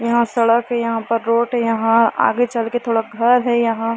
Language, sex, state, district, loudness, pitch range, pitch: Hindi, female, Jharkhand, Sahebganj, -17 LUFS, 230-235 Hz, 230 Hz